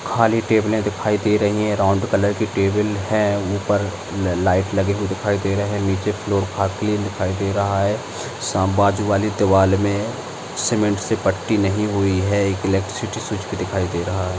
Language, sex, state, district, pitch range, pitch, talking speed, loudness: Hindi, male, Maharashtra, Aurangabad, 95-105 Hz, 100 Hz, 190 wpm, -20 LUFS